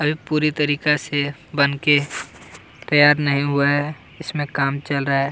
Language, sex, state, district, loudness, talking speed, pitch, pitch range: Hindi, male, Chhattisgarh, Kabirdham, -19 LUFS, 155 wpm, 145 Hz, 140-150 Hz